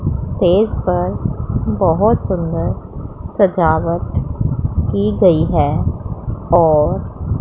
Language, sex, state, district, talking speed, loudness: Hindi, female, Punjab, Pathankot, 75 wpm, -16 LUFS